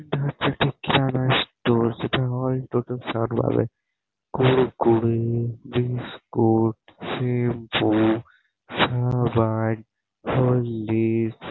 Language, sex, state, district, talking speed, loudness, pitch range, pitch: Bengali, male, West Bengal, Purulia, 85 wpm, -23 LUFS, 115-130 Hz, 120 Hz